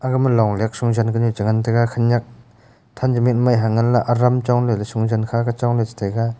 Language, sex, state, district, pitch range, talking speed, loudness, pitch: Wancho, male, Arunachal Pradesh, Longding, 115-120 Hz, 280 wpm, -18 LUFS, 120 Hz